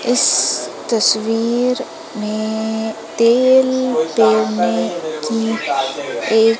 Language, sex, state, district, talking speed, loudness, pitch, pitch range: Hindi, female, Madhya Pradesh, Umaria, 55 wpm, -16 LUFS, 225 Hz, 160-240 Hz